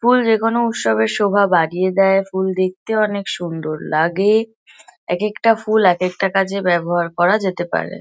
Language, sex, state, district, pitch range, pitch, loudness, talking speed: Bengali, female, West Bengal, Kolkata, 175-215 Hz, 195 Hz, -17 LUFS, 165 wpm